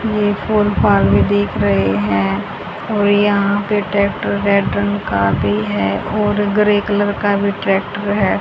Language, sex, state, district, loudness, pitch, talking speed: Hindi, female, Haryana, Charkhi Dadri, -16 LUFS, 200 Hz, 150 wpm